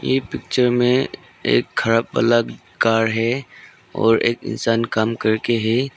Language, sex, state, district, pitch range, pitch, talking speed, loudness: Hindi, male, Arunachal Pradesh, Longding, 115-120 Hz, 115 Hz, 140 wpm, -19 LUFS